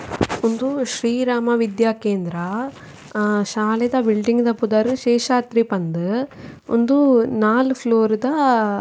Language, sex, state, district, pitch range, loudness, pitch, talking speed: Tulu, female, Karnataka, Dakshina Kannada, 215-250 Hz, -19 LUFS, 230 Hz, 115 wpm